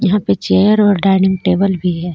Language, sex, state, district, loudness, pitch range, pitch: Hindi, female, Jharkhand, Deoghar, -13 LUFS, 175-200 Hz, 190 Hz